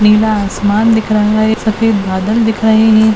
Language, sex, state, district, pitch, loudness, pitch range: Hindi, female, Maharashtra, Nagpur, 215 Hz, -11 LUFS, 210-220 Hz